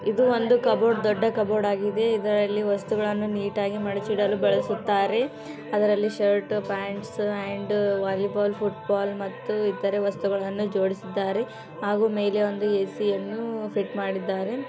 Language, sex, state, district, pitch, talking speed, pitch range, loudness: Kannada, female, Karnataka, Gulbarga, 205 Hz, 130 wpm, 200-215 Hz, -25 LUFS